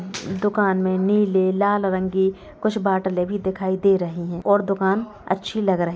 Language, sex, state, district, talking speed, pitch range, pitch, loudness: Hindi, female, Bihar, Gopalganj, 180 wpm, 185-205 Hz, 190 Hz, -21 LUFS